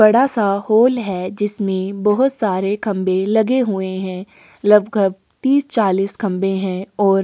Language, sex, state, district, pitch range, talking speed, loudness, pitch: Hindi, female, Maharashtra, Aurangabad, 190-220 Hz, 140 wpm, -18 LUFS, 200 Hz